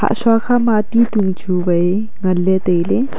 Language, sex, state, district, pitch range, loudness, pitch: Wancho, female, Arunachal Pradesh, Longding, 185-225 Hz, -16 LUFS, 205 Hz